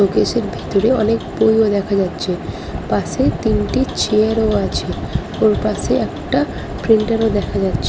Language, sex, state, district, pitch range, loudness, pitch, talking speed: Bengali, female, West Bengal, Malda, 200-220 Hz, -17 LUFS, 215 Hz, 150 wpm